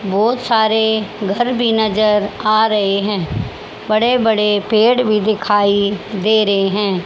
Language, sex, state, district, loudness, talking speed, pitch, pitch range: Hindi, female, Haryana, Charkhi Dadri, -15 LUFS, 135 wpm, 215 Hz, 205-220 Hz